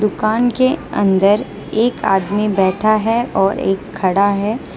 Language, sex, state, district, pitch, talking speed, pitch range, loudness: Hindi, female, Gujarat, Valsad, 210 Hz, 140 wpm, 195-225 Hz, -16 LUFS